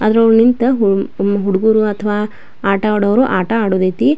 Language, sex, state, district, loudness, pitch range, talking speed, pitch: Kannada, female, Karnataka, Belgaum, -14 LUFS, 200-225 Hz, 145 wpm, 210 Hz